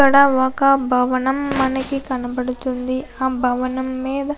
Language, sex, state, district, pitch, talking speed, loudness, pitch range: Telugu, female, Andhra Pradesh, Anantapur, 260 Hz, 125 wpm, -19 LUFS, 255-275 Hz